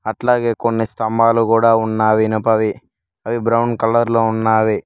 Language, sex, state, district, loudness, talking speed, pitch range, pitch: Telugu, male, Telangana, Mahabubabad, -16 LUFS, 135 wpm, 110-115 Hz, 115 Hz